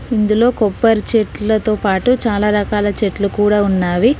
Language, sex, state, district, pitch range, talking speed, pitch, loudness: Telugu, female, Telangana, Mahabubabad, 205-225 Hz, 130 wpm, 210 Hz, -15 LUFS